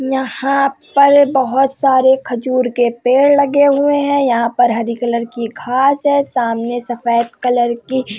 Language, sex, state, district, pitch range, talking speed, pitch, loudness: Hindi, female, Uttar Pradesh, Hamirpur, 240-275 Hz, 160 wpm, 255 Hz, -14 LUFS